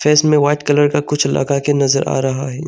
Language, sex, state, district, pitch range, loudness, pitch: Hindi, male, Arunachal Pradesh, Longding, 135-145 Hz, -15 LUFS, 145 Hz